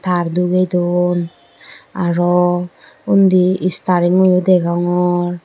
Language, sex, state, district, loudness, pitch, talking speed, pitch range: Chakma, female, Tripura, Dhalai, -15 LUFS, 180 Hz, 90 wpm, 175-185 Hz